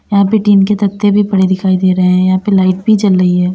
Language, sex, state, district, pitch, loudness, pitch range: Hindi, female, Uttar Pradesh, Lalitpur, 190 Hz, -11 LUFS, 185-205 Hz